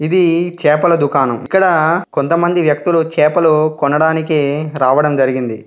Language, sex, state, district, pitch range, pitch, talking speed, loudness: Telugu, male, Andhra Pradesh, Visakhapatnam, 145-165 Hz, 155 Hz, 105 wpm, -13 LUFS